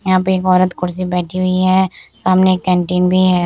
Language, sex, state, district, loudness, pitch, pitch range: Hindi, female, Uttar Pradesh, Muzaffarnagar, -15 LUFS, 185 Hz, 180-185 Hz